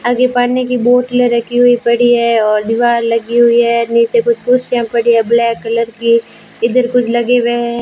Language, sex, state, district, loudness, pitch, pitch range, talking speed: Hindi, female, Rajasthan, Bikaner, -12 LUFS, 235 Hz, 235-245 Hz, 200 wpm